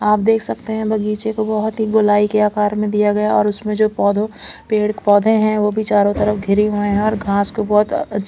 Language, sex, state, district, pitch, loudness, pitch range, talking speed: Hindi, female, Chandigarh, Chandigarh, 210 Hz, -16 LUFS, 205-215 Hz, 240 wpm